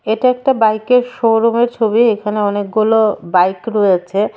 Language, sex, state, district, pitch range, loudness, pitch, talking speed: Bengali, female, Tripura, West Tripura, 205-235 Hz, -14 LUFS, 220 Hz, 125 wpm